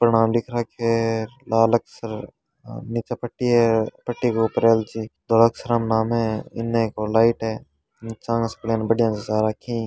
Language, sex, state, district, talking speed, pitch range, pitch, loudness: Hindi, male, Rajasthan, Churu, 190 wpm, 110-115 Hz, 115 Hz, -22 LUFS